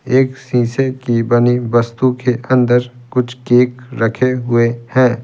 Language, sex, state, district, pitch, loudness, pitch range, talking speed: Hindi, male, Bihar, Patna, 125 Hz, -15 LUFS, 120-130 Hz, 135 wpm